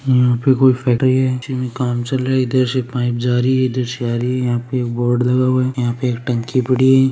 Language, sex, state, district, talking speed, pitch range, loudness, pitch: Marwari, male, Rajasthan, Churu, 285 wpm, 120-130 Hz, -17 LUFS, 125 Hz